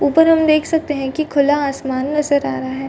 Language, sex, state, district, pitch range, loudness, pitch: Hindi, female, Chhattisgarh, Rajnandgaon, 265-310 Hz, -16 LUFS, 290 Hz